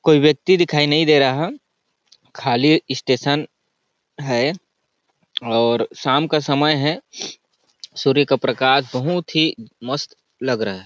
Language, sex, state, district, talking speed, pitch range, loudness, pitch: Hindi, male, Chhattisgarh, Balrampur, 135 wpm, 130-160 Hz, -18 LUFS, 145 Hz